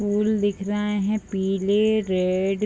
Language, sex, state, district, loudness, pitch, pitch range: Hindi, female, Bihar, Bhagalpur, -23 LUFS, 205 Hz, 195-210 Hz